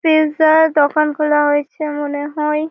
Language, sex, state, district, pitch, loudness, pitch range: Bengali, female, West Bengal, Malda, 300 Hz, -15 LUFS, 295-310 Hz